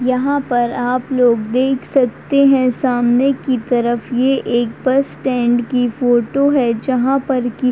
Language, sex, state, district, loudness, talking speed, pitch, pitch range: Hindi, female, Uttar Pradesh, Deoria, -16 LUFS, 155 wpm, 250 Hz, 240-265 Hz